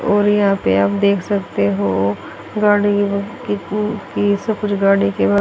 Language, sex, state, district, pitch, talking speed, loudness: Hindi, female, Haryana, Charkhi Dadri, 200 Hz, 165 wpm, -17 LUFS